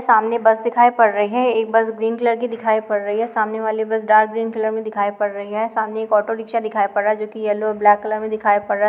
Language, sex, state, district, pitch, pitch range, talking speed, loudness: Hindi, female, Bihar, Muzaffarpur, 220 Hz, 210-225 Hz, 305 wpm, -18 LUFS